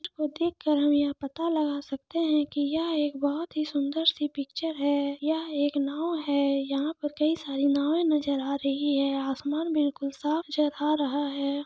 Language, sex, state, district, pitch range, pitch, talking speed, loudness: Hindi, male, Jharkhand, Sahebganj, 280-310 Hz, 290 Hz, 200 wpm, -28 LUFS